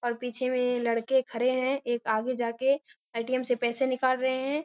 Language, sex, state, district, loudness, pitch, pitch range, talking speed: Hindi, female, Bihar, Kishanganj, -28 LUFS, 255 Hz, 240-260 Hz, 195 wpm